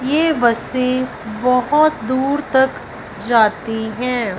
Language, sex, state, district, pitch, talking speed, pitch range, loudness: Hindi, female, Punjab, Fazilka, 250 Hz, 95 wpm, 225-265 Hz, -17 LUFS